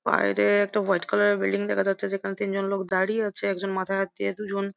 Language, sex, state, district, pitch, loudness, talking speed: Bengali, female, West Bengal, Jhargram, 195 Hz, -25 LUFS, 215 wpm